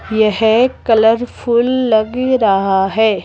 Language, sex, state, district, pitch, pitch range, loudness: Hindi, female, Rajasthan, Jaipur, 225 Hz, 215-245 Hz, -14 LUFS